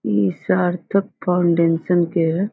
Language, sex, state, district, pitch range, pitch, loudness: Hindi, female, Bihar, Muzaffarpur, 165-180 Hz, 175 Hz, -19 LUFS